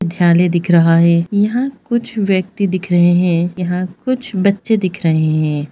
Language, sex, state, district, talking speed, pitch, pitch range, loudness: Hindi, female, Bihar, Jamui, 170 wpm, 180 Hz, 170-205 Hz, -15 LUFS